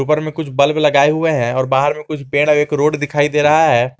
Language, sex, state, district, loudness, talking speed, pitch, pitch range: Hindi, male, Jharkhand, Garhwa, -15 LUFS, 285 wpm, 150 Hz, 140-150 Hz